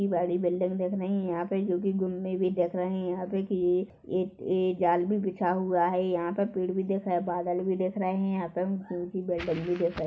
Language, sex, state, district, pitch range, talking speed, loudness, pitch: Hindi, female, Chhattisgarh, Korba, 175-190 Hz, 215 wpm, -29 LUFS, 185 Hz